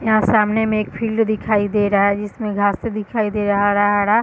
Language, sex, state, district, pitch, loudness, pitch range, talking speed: Hindi, female, Bihar, East Champaran, 210 Hz, -18 LUFS, 205-220 Hz, 225 wpm